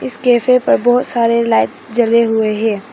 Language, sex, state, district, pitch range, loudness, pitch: Hindi, female, Arunachal Pradesh, Papum Pare, 220-245 Hz, -14 LUFS, 235 Hz